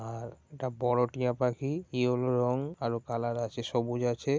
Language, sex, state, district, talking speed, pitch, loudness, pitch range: Bengali, male, West Bengal, Kolkata, 175 wpm, 125 Hz, -31 LUFS, 120-130 Hz